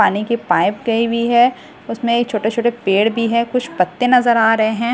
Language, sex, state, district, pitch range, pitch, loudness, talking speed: Hindi, female, Delhi, New Delhi, 220-240 Hz, 230 Hz, -16 LUFS, 205 wpm